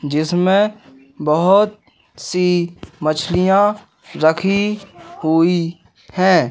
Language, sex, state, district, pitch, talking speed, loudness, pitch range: Hindi, male, Madhya Pradesh, Katni, 175 Hz, 65 wpm, -17 LUFS, 155-195 Hz